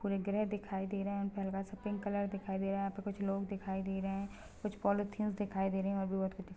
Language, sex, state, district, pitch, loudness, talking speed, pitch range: Hindi, female, Chhattisgarh, Balrampur, 195 Hz, -38 LUFS, 285 wpm, 195-205 Hz